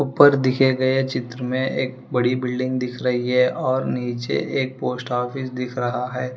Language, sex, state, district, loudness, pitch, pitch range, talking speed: Hindi, female, Telangana, Hyderabad, -22 LUFS, 125 Hz, 125-130 Hz, 180 wpm